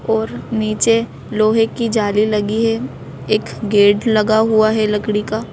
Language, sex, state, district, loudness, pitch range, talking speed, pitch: Hindi, female, Madhya Pradesh, Bhopal, -16 LUFS, 210-225 Hz, 150 wpm, 215 Hz